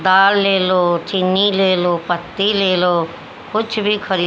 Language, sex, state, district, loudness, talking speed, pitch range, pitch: Hindi, female, Haryana, Jhajjar, -16 LUFS, 170 wpm, 175-200 Hz, 190 Hz